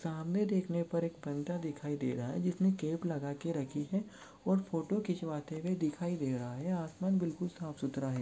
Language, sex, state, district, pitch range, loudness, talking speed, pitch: Hindi, male, Chhattisgarh, Korba, 145-180 Hz, -36 LUFS, 205 wpm, 165 Hz